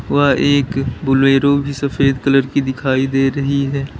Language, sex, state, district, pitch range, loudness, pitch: Hindi, male, Uttar Pradesh, Lalitpur, 135-140 Hz, -15 LUFS, 135 Hz